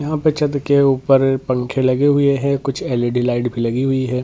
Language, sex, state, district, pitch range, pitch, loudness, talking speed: Hindi, male, Bihar, Purnia, 125-140 Hz, 135 Hz, -17 LUFS, 225 wpm